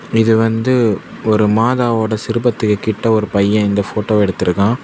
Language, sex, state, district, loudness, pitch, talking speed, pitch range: Tamil, male, Tamil Nadu, Kanyakumari, -15 LUFS, 110 Hz, 135 wpm, 105-115 Hz